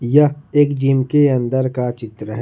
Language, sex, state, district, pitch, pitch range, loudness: Hindi, male, Jharkhand, Ranchi, 135 Hz, 120-145 Hz, -16 LUFS